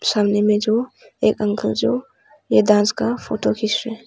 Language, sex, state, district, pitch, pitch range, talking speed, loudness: Hindi, female, Arunachal Pradesh, Papum Pare, 215 Hz, 210-240 Hz, 190 wpm, -19 LUFS